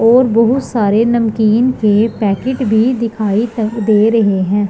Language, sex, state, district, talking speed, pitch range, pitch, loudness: Hindi, female, Punjab, Pathankot, 140 wpm, 210-235 Hz, 225 Hz, -13 LUFS